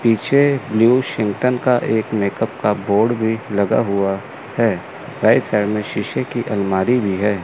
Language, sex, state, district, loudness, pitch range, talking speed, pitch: Hindi, male, Chandigarh, Chandigarh, -18 LUFS, 100-120 Hz, 160 wpm, 110 Hz